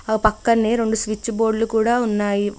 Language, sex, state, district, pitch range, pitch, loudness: Telugu, female, Telangana, Mahabubabad, 215-225 Hz, 225 Hz, -19 LUFS